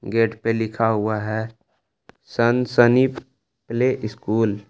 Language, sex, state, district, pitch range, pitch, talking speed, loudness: Hindi, male, Jharkhand, Palamu, 110-120 Hz, 115 Hz, 115 wpm, -21 LUFS